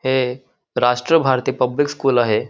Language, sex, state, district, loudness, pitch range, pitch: Marathi, male, Maharashtra, Nagpur, -18 LUFS, 125-135 Hz, 130 Hz